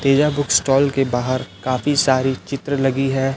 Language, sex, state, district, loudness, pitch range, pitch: Hindi, male, Chhattisgarh, Raipur, -18 LUFS, 130-140 Hz, 135 Hz